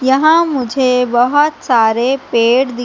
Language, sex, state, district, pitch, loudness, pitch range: Hindi, female, Madhya Pradesh, Katni, 260 Hz, -13 LUFS, 245-275 Hz